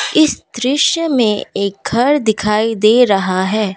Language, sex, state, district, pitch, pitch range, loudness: Hindi, female, Assam, Kamrup Metropolitan, 220 Hz, 205-270 Hz, -14 LUFS